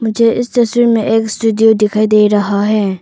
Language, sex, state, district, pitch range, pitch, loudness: Hindi, female, Arunachal Pradesh, Papum Pare, 210-230 Hz, 220 Hz, -12 LUFS